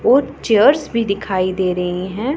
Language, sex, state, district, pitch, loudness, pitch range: Hindi, female, Punjab, Pathankot, 210 Hz, -17 LUFS, 185-255 Hz